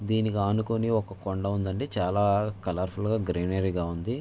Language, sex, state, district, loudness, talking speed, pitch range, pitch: Telugu, male, Andhra Pradesh, Visakhapatnam, -28 LUFS, 170 wpm, 95-110 Hz, 100 Hz